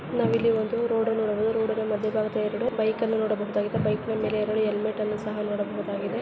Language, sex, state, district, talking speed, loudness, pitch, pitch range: Kannada, female, Karnataka, Raichur, 200 wpm, -26 LUFS, 215 Hz, 210-225 Hz